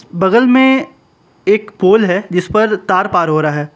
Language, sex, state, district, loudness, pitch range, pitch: Hindi, male, Jharkhand, Palamu, -13 LUFS, 180-220 Hz, 190 Hz